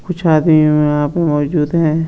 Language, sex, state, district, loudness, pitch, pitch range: Hindi, male, Uttar Pradesh, Etah, -14 LUFS, 155 Hz, 150-165 Hz